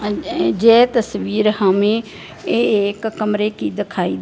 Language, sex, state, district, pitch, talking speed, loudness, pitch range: Hindi, female, Punjab, Fazilka, 210 Hz, 130 wpm, -17 LUFS, 205-220 Hz